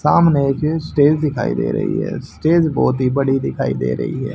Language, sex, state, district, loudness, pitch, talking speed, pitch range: Hindi, male, Haryana, Rohtak, -17 LUFS, 145 Hz, 205 wpm, 135-155 Hz